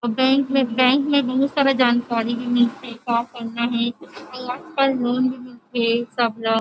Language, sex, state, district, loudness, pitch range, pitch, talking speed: Chhattisgarhi, female, Chhattisgarh, Rajnandgaon, -20 LUFS, 235-260 Hz, 245 Hz, 190 wpm